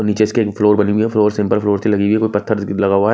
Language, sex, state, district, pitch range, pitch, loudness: Hindi, male, Odisha, Nuapada, 100-110 Hz, 105 Hz, -15 LUFS